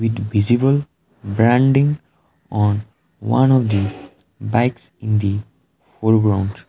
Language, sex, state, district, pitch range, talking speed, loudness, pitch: English, male, Sikkim, Gangtok, 100-120 Hz, 100 wpm, -18 LUFS, 110 Hz